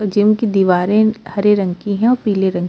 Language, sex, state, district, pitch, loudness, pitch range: Hindi, female, Uttar Pradesh, Muzaffarnagar, 205 Hz, -15 LUFS, 190-215 Hz